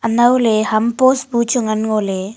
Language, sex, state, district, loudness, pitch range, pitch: Wancho, female, Arunachal Pradesh, Longding, -15 LUFS, 215-245 Hz, 230 Hz